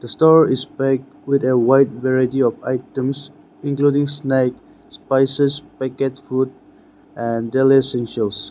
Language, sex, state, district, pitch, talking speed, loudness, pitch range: English, male, Nagaland, Dimapur, 135 Hz, 125 wpm, -18 LUFS, 130-140 Hz